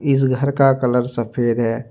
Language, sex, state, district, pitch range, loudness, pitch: Hindi, male, Jharkhand, Ranchi, 120-135 Hz, -18 LUFS, 125 Hz